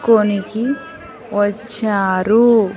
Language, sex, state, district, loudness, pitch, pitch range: Telugu, female, Andhra Pradesh, Sri Satya Sai, -16 LUFS, 215 Hz, 205-235 Hz